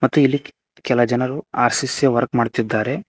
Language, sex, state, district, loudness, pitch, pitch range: Kannada, male, Karnataka, Koppal, -19 LUFS, 130 Hz, 120-140 Hz